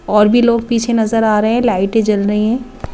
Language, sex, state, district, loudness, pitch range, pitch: Hindi, female, Madhya Pradesh, Bhopal, -14 LUFS, 210-235 Hz, 225 Hz